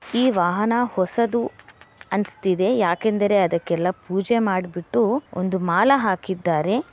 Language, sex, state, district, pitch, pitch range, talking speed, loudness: Kannada, female, Karnataka, Bellary, 195 Hz, 180-235 Hz, 95 wpm, -21 LUFS